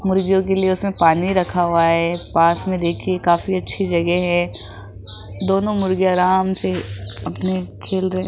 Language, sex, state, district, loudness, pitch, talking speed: Hindi, female, Rajasthan, Jaipur, -18 LUFS, 175 Hz, 165 wpm